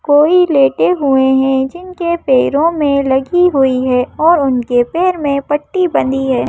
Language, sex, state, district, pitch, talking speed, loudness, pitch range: Hindi, female, Madhya Pradesh, Bhopal, 280 Hz, 155 wpm, -13 LUFS, 265-340 Hz